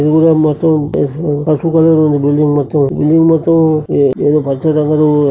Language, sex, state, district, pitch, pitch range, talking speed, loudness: Telugu, male, Andhra Pradesh, Srikakulam, 150 Hz, 145-160 Hz, 145 wpm, -12 LUFS